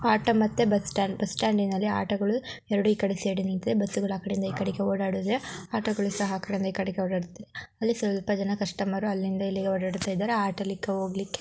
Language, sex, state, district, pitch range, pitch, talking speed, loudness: Kannada, female, Karnataka, Mysore, 195-210 Hz, 200 Hz, 170 wpm, -28 LUFS